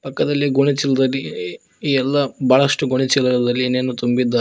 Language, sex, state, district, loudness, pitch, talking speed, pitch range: Kannada, male, Karnataka, Koppal, -18 LUFS, 130 Hz, 135 wpm, 125-140 Hz